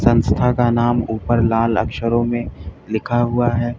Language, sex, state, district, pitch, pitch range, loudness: Hindi, male, Uttar Pradesh, Lalitpur, 120 Hz, 110-120 Hz, -18 LUFS